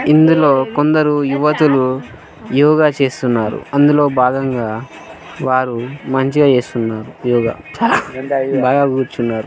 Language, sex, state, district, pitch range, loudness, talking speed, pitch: Telugu, male, Telangana, Karimnagar, 125-145 Hz, -15 LUFS, 80 wpm, 135 Hz